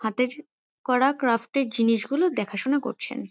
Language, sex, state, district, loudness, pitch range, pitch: Bengali, female, West Bengal, Kolkata, -25 LUFS, 230-275 Hz, 250 Hz